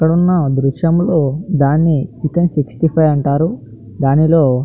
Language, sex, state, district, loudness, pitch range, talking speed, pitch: Telugu, male, Andhra Pradesh, Anantapur, -14 LUFS, 135-165 Hz, 130 wpm, 155 Hz